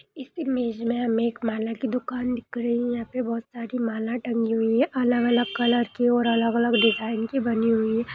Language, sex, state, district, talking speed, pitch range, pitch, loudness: Hindi, female, Bihar, Purnia, 215 wpm, 230-245 Hz, 235 Hz, -24 LUFS